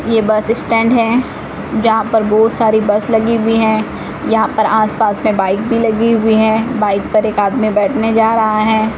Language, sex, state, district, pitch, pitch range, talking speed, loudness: Hindi, female, Odisha, Malkangiri, 220 Hz, 215-225 Hz, 200 wpm, -13 LUFS